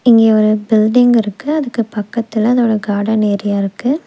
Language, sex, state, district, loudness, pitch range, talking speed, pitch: Tamil, female, Tamil Nadu, Nilgiris, -14 LUFS, 210-240 Hz, 150 wpm, 220 Hz